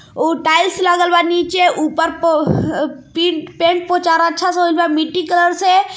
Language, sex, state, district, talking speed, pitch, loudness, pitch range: Bhojpuri, female, Jharkhand, Palamu, 160 wpm, 345 Hz, -15 LUFS, 330-355 Hz